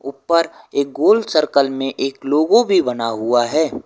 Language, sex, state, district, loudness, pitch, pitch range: Hindi, male, Uttar Pradesh, Lucknow, -17 LUFS, 140 Hz, 135-160 Hz